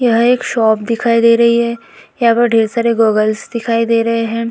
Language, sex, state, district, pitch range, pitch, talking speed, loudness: Hindi, female, Bihar, Vaishali, 225-235 Hz, 230 Hz, 215 wpm, -13 LUFS